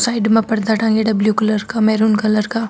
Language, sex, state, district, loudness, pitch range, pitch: Marwari, female, Rajasthan, Nagaur, -16 LUFS, 215-225 Hz, 220 Hz